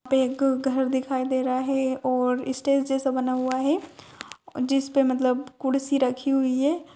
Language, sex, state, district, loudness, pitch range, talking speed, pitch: Kumaoni, female, Uttarakhand, Uttarkashi, -24 LUFS, 255-275 Hz, 170 wpm, 265 Hz